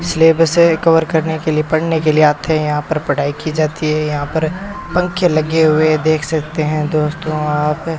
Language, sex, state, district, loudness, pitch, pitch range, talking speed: Hindi, male, Rajasthan, Bikaner, -15 LUFS, 155 Hz, 150-165 Hz, 205 wpm